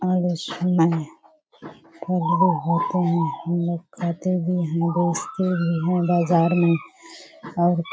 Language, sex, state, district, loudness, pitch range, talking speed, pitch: Hindi, female, Bihar, Kishanganj, -22 LUFS, 170-180 Hz, 120 wpm, 175 Hz